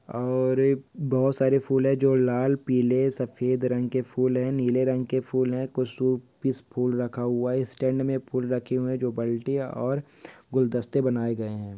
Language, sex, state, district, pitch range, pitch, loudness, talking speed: Hindi, male, Andhra Pradesh, Visakhapatnam, 125-130 Hz, 130 Hz, -26 LUFS, 195 wpm